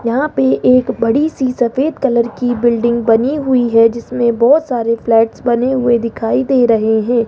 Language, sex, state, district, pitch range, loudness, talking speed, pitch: Hindi, female, Rajasthan, Jaipur, 230-255 Hz, -13 LUFS, 180 wpm, 240 Hz